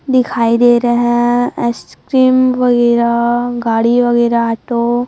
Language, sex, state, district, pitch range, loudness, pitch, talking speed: Hindi, female, Chhattisgarh, Raipur, 235-245 Hz, -13 LUFS, 240 Hz, 120 wpm